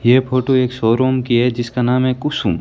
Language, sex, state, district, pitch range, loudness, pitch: Hindi, male, Rajasthan, Bikaner, 120-130 Hz, -16 LUFS, 125 Hz